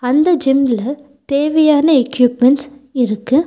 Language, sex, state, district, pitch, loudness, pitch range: Tamil, female, Tamil Nadu, Nilgiris, 275 Hz, -14 LUFS, 250-290 Hz